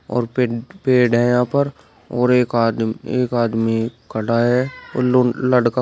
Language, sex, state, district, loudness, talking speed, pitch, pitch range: Hindi, male, Uttar Pradesh, Shamli, -18 LUFS, 155 wpm, 120 Hz, 115-125 Hz